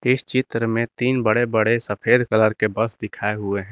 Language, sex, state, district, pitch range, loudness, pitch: Hindi, male, Jharkhand, Garhwa, 110-120 Hz, -20 LUFS, 115 Hz